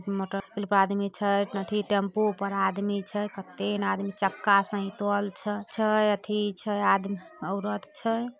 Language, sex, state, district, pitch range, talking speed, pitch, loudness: Maithili, female, Bihar, Samastipur, 195-210 Hz, 130 wpm, 200 Hz, -28 LUFS